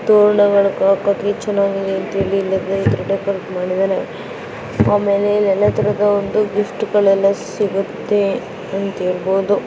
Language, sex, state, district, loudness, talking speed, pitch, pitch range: Kannada, female, Karnataka, Belgaum, -17 LUFS, 145 wpm, 200 Hz, 195-205 Hz